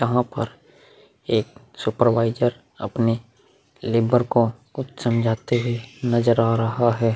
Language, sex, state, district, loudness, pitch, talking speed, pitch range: Hindi, male, Uttar Pradesh, Muzaffarnagar, -22 LUFS, 120 Hz, 115 wpm, 115-120 Hz